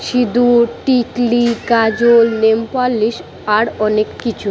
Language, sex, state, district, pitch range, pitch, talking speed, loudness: Bengali, female, West Bengal, Purulia, 220-240 Hz, 235 Hz, 95 wpm, -14 LUFS